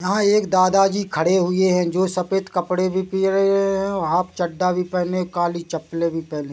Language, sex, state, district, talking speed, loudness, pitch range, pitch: Hindi, male, Chhattisgarh, Bilaspur, 195 wpm, -20 LUFS, 175-195 Hz, 185 Hz